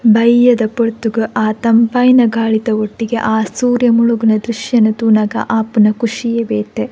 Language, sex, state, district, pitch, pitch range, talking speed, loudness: Tulu, female, Karnataka, Dakshina Kannada, 225 Hz, 220-235 Hz, 120 wpm, -13 LUFS